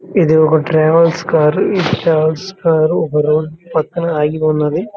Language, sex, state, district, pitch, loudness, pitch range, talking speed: Telugu, male, Andhra Pradesh, Guntur, 160 Hz, -14 LUFS, 155-165 Hz, 145 wpm